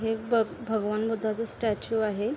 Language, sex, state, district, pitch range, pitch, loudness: Marathi, female, Maharashtra, Aurangabad, 215-225 Hz, 220 Hz, -28 LUFS